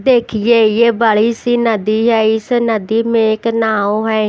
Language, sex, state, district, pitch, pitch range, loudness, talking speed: Hindi, female, Haryana, Jhajjar, 225 Hz, 220-235 Hz, -13 LUFS, 170 wpm